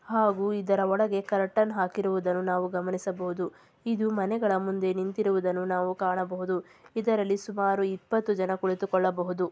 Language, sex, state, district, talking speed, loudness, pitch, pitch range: Kannada, female, Karnataka, Chamarajanagar, 105 wpm, -28 LUFS, 190 Hz, 185-205 Hz